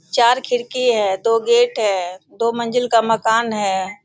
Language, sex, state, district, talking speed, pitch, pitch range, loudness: Hindi, female, Bihar, Sitamarhi, 160 wpm, 230 Hz, 205-235 Hz, -17 LUFS